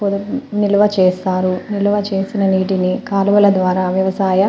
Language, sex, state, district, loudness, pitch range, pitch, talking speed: Telugu, female, Telangana, Nalgonda, -16 LUFS, 185-205 Hz, 195 Hz, 120 wpm